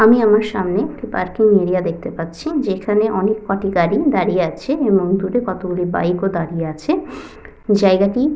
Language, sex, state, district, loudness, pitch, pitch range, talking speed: Bengali, female, West Bengal, Purulia, -17 LUFS, 195 Hz, 185-220 Hz, 165 wpm